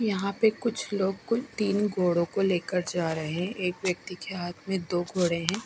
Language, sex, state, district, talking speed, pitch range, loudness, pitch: Hindi, female, Punjab, Fazilka, 210 wpm, 175-200 Hz, -28 LUFS, 185 Hz